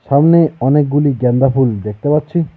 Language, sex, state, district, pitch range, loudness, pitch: Bengali, male, West Bengal, Alipurduar, 130-150 Hz, -13 LUFS, 140 Hz